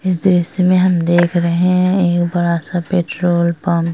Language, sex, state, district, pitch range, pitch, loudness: Hindi, female, Bihar, Vaishali, 170-180 Hz, 175 Hz, -15 LUFS